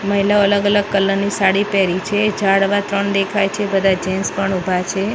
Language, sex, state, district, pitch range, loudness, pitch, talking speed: Gujarati, female, Maharashtra, Mumbai Suburban, 195-205 Hz, -17 LUFS, 200 Hz, 210 wpm